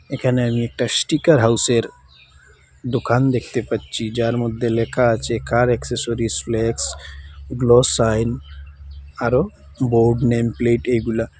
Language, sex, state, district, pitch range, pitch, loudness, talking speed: Bengali, male, Assam, Hailakandi, 110-120 Hz, 115 Hz, -19 LUFS, 110 wpm